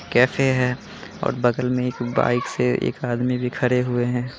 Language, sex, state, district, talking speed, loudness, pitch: Hindi, male, Bihar, Jamui, 190 wpm, -22 LUFS, 125 Hz